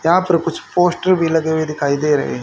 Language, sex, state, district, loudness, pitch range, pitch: Hindi, male, Haryana, Charkhi Dadri, -17 LUFS, 150-175 Hz, 165 Hz